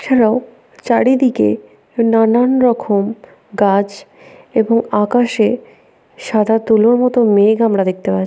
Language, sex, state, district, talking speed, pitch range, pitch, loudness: Bengali, female, West Bengal, Paschim Medinipur, 100 wpm, 200-240 Hz, 225 Hz, -14 LUFS